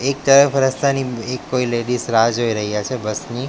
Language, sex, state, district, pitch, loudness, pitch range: Gujarati, male, Gujarat, Gandhinagar, 125 Hz, -18 LUFS, 115-135 Hz